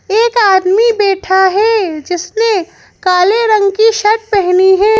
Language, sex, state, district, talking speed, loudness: Hindi, female, Madhya Pradesh, Bhopal, 130 wpm, -11 LUFS